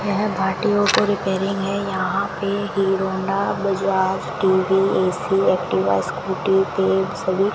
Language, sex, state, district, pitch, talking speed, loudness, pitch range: Hindi, female, Rajasthan, Bikaner, 195 Hz, 135 wpm, -20 LUFS, 190-200 Hz